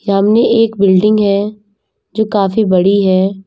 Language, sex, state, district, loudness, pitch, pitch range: Hindi, female, Uttar Pradesh, Lalitpur, -12 LUFS, 200 Hz, 195-215 Hz